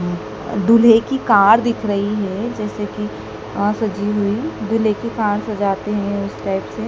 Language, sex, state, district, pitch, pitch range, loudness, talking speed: Hindi, female, Madhya Pradesh, Dhar, 205 Hz, 190-220 Hz, -18 LUFS, 165 wpm